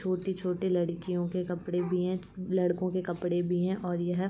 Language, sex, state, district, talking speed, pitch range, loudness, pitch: Hindi, female, Uttar Pradesh, Varanasi, 195 wpm, 175-185 Hz, -31 LUFS, 180 Hz